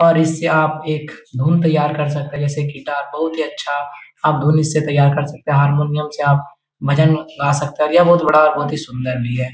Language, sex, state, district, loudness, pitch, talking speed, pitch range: Hindi, male, Bihar, Jahanabad, -17 LUFS, 150 Hz, 230 wpm, 145-155 Hz